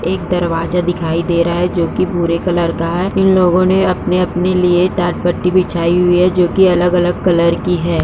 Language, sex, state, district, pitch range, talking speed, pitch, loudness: Hindi, female, Uttar Pradesh, Jyotiba Phule Nagar, 170-180 Hz, 185 wpm, 180 Hz, -14 LUFS